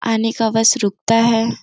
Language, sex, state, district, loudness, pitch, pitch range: Hindi, female, Uttar Pradesh, Gorakhpur, -16 LUFS, 225 Hz, 225-230 Hz